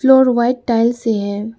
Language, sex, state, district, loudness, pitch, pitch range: Hindi, female, Arunachal Pradesh, Lower Dibang Valley, -15 LUFS, 235 Hz, 225-250 Hz